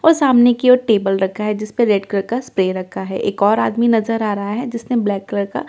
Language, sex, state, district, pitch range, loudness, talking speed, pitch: Hindi, female, Delhi, New Delhi, 200-235 Hz, -17 LUFS, 275 wpm, 215 Hz